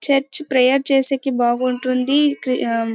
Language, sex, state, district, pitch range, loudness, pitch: Telugu, female, Karnataka, Bellary, 255-275 Hz, -17 LUFS, 265 Hz